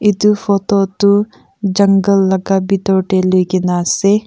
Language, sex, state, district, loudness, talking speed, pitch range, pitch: Nagamese, female, Nagaland, Kohima, -13 LUFS, 140 wpm, 190-200 Hz, 195 Hz